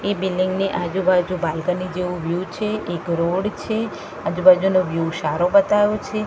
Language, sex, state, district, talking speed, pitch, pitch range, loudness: Gujarati, female, Gujarat, Gandhinagar, 170 wpm, 185 Hz, 175-205 Hz, -20 LUFS